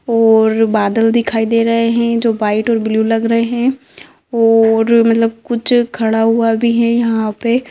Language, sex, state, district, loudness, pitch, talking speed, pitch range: Hindi, female, Jharkhand, Sahebganj, -13 LUFS, 230 Hz, 170 wpm, 225-235 Hz